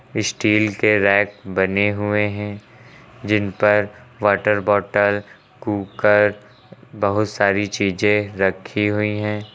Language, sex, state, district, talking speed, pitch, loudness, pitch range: Hindi, male, Uttar Pradesh, Lucknow, 105 wpm, 105 Hz, -19 LUFS, 100-105 Hz